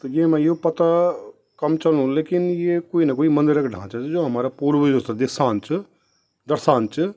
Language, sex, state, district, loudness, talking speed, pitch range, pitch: Garhwali, male, Uttarakhand, Tehri Garhwal, -20 LUFS, 190 wpm, 135-170 Hz, 155 Hz